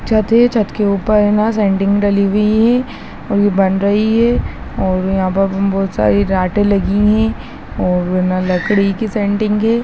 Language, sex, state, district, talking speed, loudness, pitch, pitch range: Hindi, female, Bihar, Gaya, 190 wpm, -14 LUFS, 205 Hz, 195-215 Hz